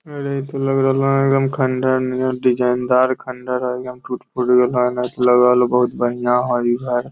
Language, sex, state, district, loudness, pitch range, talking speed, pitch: Magahi, male, Bihar, Lakhisarai, -18 LUFS, 125-130 Hz, 195 wpm, 125 Hz